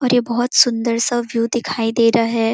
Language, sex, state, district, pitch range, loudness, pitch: Hindi, female, Chhattisgarh, Korba, 230-240 Hz, -17 LUFS, 235 Hz